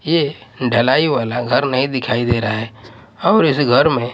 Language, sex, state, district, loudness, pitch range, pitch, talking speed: Hindi, male, Odisha, Malkangiri, -16 LUFS, 115-130 Hz, 120 Hz, 190 wpm